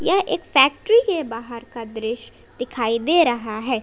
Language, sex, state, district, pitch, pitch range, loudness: Hindi, female, Jharkhand, Palamu, 245 Hz, 230-325 Hz, -20 LUFS